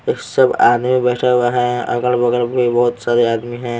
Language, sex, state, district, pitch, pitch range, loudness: Hindi, male, Bihar, Patna, 120 Hz, 120-125 Hz, -16 LUFS